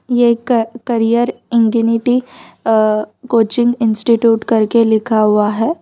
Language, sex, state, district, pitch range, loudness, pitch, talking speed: Hindi, female, Gujarat, Valsad, 220-240 Hz, -14 LUFS, 230 Hz, 115 wpm